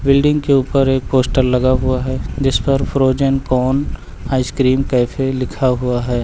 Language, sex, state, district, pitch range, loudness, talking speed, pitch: Hindi, male, Uttar Pradesh, Lucknow, 130-135 Hz, -16 LUFS, 165 wpm, 130 Hz